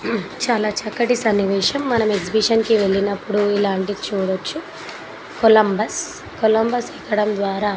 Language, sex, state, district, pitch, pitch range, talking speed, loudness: Telugu, female, Telangana, Nalgonda, 210 Hz, 200-225 Hz, 115 wpm, -19 LUFS